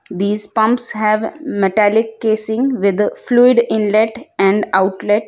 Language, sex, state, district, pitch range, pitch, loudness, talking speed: English, female, Gujarat, Valsad, 205-225 Hz, 215 Hz, -15 LUFS, 115 wpm